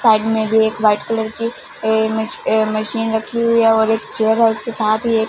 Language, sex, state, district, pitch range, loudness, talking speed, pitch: Hindi, female, Punjab, Fazilka, 220-225 Hz, -16 LUFS, 260 wpm, 220 Hz